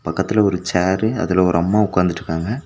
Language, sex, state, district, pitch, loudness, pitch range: Tamil, male, Tamil Nadu, Nilgiris, 90 Hz, -18 LUFS, 90-105 Hz